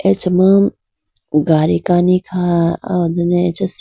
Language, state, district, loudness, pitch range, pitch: Idu Mishmi, Arunachal Pradesh, Lower Dibang Valley, -15 LUFS, 160-185 Hz, 175 Hz